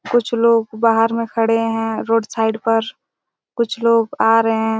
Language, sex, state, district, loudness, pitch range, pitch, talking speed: Hindi, female, Chhattisgarh, Raigarh, -17 LUFS, 225-230 Hz, 225 Hz, 175 wpm